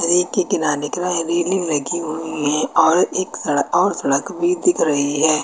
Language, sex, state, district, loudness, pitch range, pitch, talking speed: Hindi, female, Uttar Pradesh, Lucknow, -18 LUFS, 150-180 Hz, 165 Hz, 185 wpm